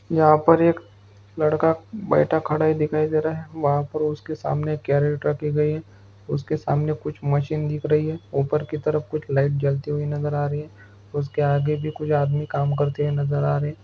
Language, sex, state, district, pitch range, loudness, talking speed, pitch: Hindi, male, Bihar, Araria, 145-155 Hz, -23 LUFS, 210 wpm, 150 Hz